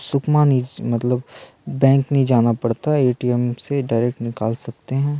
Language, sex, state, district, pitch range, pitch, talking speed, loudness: Hindi, male, Chhattisgarh, Sukma, 115-135 Hz, 125 Hz, 160 wpm, -19 LUFS